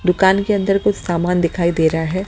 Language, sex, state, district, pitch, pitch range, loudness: Hindi, female, Delhi, New Delhi, 180 Hz, 170-195 Hz, -17 LUFS